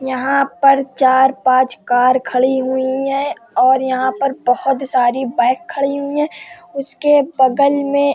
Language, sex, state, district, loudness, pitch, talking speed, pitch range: Hindi, female, Uttar Pradesh, Hamirpur, -15 LUFS, 265 Hz, 145 wpm, 260-280 Hz